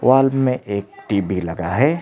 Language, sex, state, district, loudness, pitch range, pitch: Hindi, male, Odisha, Khordha, -20 LUFS, 95-135 Hz, 105 Hz